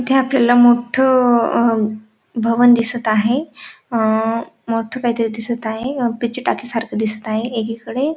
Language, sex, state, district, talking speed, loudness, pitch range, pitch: Marathi, female, Maharashtra, Dhule, 125 wpm, -17 LUFS, 225-250 Hz, 235 Hz